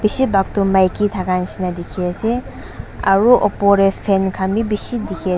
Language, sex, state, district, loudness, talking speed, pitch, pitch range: Nagamese, female, Nagaland, Dimapur, -17 LUFS, 190 wpm, 195 Hz, 190-210 Hz